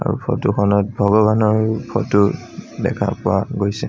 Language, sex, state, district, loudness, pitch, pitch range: Assamese, male, Assam, Sonitpur, -18 LUFS, 100 Hz, 100-110 Hz